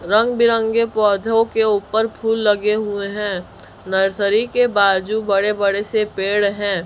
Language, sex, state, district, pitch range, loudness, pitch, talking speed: Hindi, male, Chhattisgarh, Raipur, 200-225 Hz, -17 LUFS, 210 Hz, 150 wpm